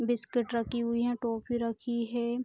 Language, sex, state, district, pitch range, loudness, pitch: Hindi, female, Bihar, Araria, 235-240 Hz, -32 LUFS, 235 Hz